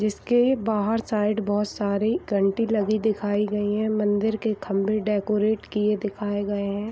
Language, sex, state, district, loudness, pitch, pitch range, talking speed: Hindi, female, Bihar, Saharsa, -24 LUFS, 210 Hz, 205-215 Hz, 155 wpm